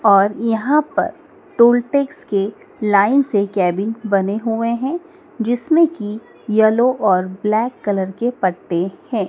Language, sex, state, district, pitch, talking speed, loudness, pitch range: Hindi, female, Madhya Pradesh, Dhar, 220 Hz, 135 wpm, -18 LUFS, 200-250 Hz